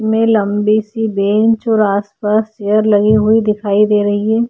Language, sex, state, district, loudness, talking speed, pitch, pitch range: Hindi, female, Uttarakhand, Tehri Garhwal, -13 LUFS, 185 wpm, 215 Hz, 205-220 Hz